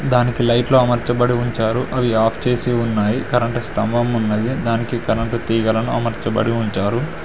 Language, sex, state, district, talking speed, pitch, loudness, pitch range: Telugu, male, Telangana, Mahabubabad, 130 wpm, 120 Hz, -18 LUFS, 115-120 Hz